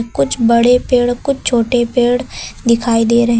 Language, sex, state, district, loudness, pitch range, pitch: Hindi, female, Uttar Pradesh, Lucknow, -14 LUFS, 235-245 Hz, 240 Hz